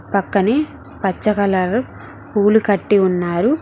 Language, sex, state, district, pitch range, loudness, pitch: Telugu, female, Telangana, Mahabubabad, 190-220 Hz, -17 LUFS, 205 Hz